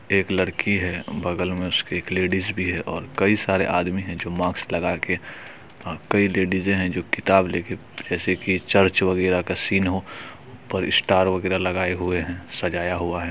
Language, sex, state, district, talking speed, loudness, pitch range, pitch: Hindi, male, Bihar, Supaul, 180 wpm, -23 LUFS, 90-95 Hz, 95 Hz